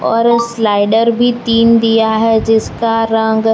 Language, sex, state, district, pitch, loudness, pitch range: Hindi, female, Gujarat, Valsad, 225 Hz, -12 LUFS, 225-230 Hz